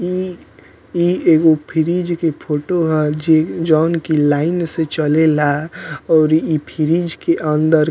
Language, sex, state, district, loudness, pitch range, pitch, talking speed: Bhojpuri, male, Bihar, Muzaffarpur, -16 LUFS, 155-170 Hz, 160 Hz, 135 wpm